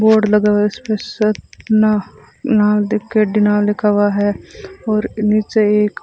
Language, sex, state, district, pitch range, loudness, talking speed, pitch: Hindi, female, Rajasthan, Bikaner, 210-215 Hz, -15 LUFS, 130 wpm, 210 Hz